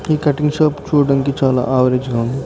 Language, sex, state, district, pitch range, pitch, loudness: Telugu, male, Telangana, Karimnagar, 130-150 Hz, 140 Hz, -16 LUFS